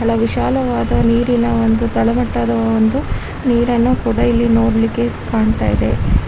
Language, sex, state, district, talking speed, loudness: Kannada, female, Karnataka, Raichur, 105 wpm, -16 LUFS